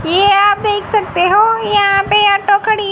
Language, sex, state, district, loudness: Hindi, female, Haryana, Jhajjar, -12 LUFS